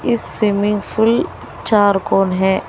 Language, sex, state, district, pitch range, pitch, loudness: Hindi, female, Telangana, Hyderabad, 195-220 Hz, 205 Hz, -16 LUFS